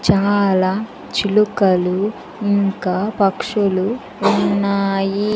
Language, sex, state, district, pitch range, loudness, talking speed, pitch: Telugu, female, Andhra Pradesh, Sri Satya Sai, 190-205 Hz, -18 LUFS, 55 wpm, 200 Hz